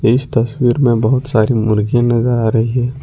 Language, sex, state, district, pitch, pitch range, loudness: Hindi, male, Jharkhand, Ranchi, 120 Hz, 115-125 Hz, -14 LUFS